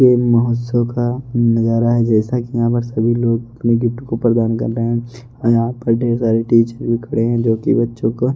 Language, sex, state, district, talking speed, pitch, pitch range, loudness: Hindi, male, Delhi, New Delhi, 215 wpm, 115 Hz, 115-120 Hz, -17 LUFS